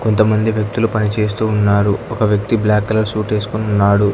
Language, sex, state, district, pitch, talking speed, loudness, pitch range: Telugu, male, Telangana, Hyderabad, 105 Hz, 160 wpm, -16 LUFS, 105-110 Hz